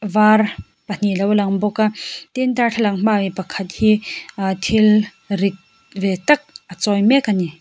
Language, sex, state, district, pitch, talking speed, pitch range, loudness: Mizo, female, Mizoram, Aizawl, 210 Hz, 175 wpm, 195-220 Hz, -18 LUFS